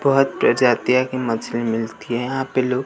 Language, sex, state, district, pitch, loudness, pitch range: Hindi, male, Bihar, West Champaran, 125 Hz, -20 LUFS, 115-135 Hz